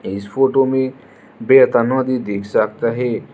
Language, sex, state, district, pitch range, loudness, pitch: Hindi, male, Arunachal Pradesh, Lower Dibang Valley, 115-135 Hz, -16 LUFS, 130 Hz